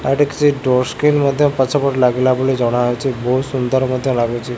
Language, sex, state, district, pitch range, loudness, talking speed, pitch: Odia, male, Odisha, Khordha, 125-140 Hz, -16 LUFS, 195 wpm, 130 Hz